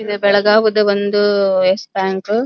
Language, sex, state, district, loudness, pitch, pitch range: Kannada, female, Karnataka, Belgaum, -14 LUFS, 205 Hz, 195-210 Hz